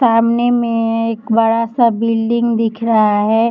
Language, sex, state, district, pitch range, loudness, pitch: Hindi, female, Maharashtra, Chandrapur, 225-235 Hz, -15 LUFS, 230 Hz